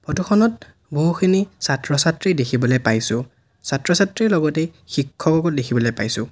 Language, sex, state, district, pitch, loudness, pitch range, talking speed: Assamese, male, Assam, Sonitpur, 150 Hz, -19 LUFS, 125-175 Hz, 115 wpm